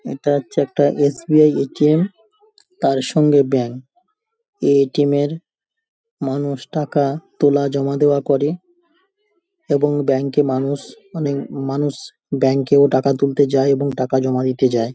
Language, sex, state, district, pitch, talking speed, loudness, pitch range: Bengali, male, West Bengal, Paschim Medinipur, 145 Hz, 135 wpm, -18 LUFS, 135-160 Hz